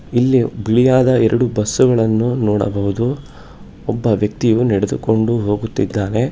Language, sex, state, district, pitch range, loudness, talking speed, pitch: Kannada, male, Karnataka, Bangalore, 105-125 Hz, -16 LUFS, 85 wpm, 115 Hz